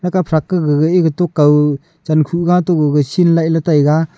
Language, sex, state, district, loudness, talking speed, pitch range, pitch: Wancho, male, Arunachal Pradesh, Longding, -14 LUFS, 160 wpm, 150-175 Hz, 160 Hz